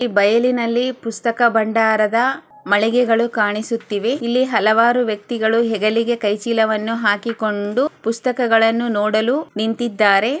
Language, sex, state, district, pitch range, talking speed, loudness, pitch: Kannada, female, Karnataka, Chamarajanagar, 215-240 Hz, 105 wpm, -17 LUFS, 230 Hz